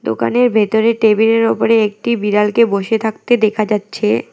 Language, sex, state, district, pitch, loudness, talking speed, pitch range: Bengali, female, West Bengal, Alipurduar, 220 Hz, -14 LUFS, 155 wpm, 210-225 Hz